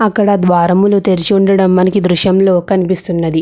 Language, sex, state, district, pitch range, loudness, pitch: Telugu, female, Andhra Pradesh, Chittoor, 180-200 Hz, -11 LUFS, 190 Hz